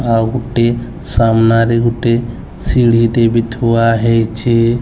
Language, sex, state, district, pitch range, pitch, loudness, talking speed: Odia, male, Odisha, Sambalpur, 115-120 Hz, 115 Hz, -13 LUFS, 100 wpm